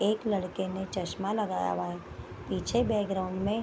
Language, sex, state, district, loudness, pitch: Hindi, female, Bihar, Gopalganj, -31 LUFS, 190 Hz